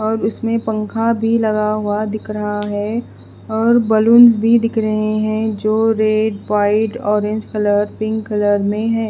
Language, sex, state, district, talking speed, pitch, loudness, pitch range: Hindi, female, Bihar, West Champaran, 160 wpm, 215 Hz, -16 LUFS, 210-225 Hz